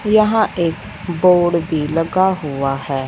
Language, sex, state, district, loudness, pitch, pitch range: Hindi, female, Punjab, Fazilka, -17 LUFS, 170 Hz, 150-185 Hz